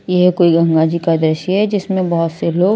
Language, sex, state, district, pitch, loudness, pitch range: Hindi, female, Maharashtra, Washim, 175 Hz, -15 LUFS, 165-185 Hz